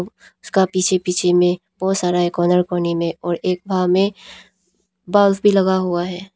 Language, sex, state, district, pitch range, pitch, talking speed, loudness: Hindi, female, Arunachal Pradesh, Papum Pare, 180-190 Hz, 185 Hz, 170 wpm, -18 LUFS